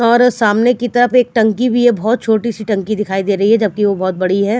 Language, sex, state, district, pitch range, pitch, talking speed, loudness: Hindi, female, Punjab, Fazilka, 205-240 Hz, 220 Hz, 285 wpm, -14 LUFS